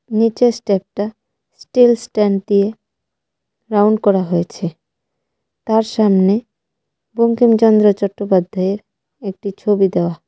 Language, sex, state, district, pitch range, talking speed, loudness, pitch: Bengali, female, Tripura, West Tripura, 195-225 Hz, 85 wpm, -16 LUFS, 205 Hz